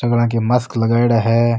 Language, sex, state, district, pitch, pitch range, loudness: Rajasthani, male, Rajasthan, Nagaur, 115 Hz, 115-120 Hz, -16 LUFS